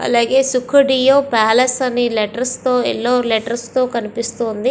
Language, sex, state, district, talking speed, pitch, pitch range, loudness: Telugu, female, Andhra Pradesh, Visakhapatnam, 140 wpm, 245 Hz, 235-255 Hz, -16 LUFS